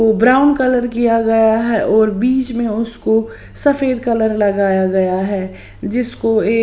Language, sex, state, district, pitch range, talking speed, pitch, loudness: Hindi, female, Maharashtra, Washim, 215-245 Hz, 155 wpm, 225 Hz, -15 LUFS